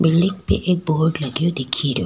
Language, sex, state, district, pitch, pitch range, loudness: Rajasthani, female, Rajasthan, Nagaur, 160 Hz, 140-170 Hz, -20 LUFS